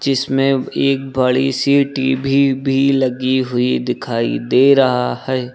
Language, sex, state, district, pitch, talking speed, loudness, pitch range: Hindi, male, Uttar Pradesh, Lucknow, 130 Hz, 130 wpm, -16 LUFS, 130-135 Hz